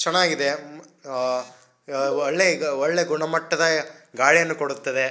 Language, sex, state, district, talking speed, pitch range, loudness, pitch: Kannada, male, Karnataka, Shimoga, 105 wpm, 130-160 Hz, -22 LUFS, 150 Hz